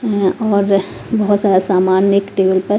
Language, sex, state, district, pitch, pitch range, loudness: Hindi, female, Punjab, Kapurthala, 200 Hz, 190-205 Hz, -14 LUFS